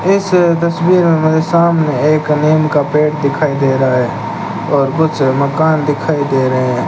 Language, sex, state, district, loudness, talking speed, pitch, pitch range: Hindi, male, Rajasthan, Bikaner, -13 LUFS, 165 wpm, 150 Hz, 135-160 Hz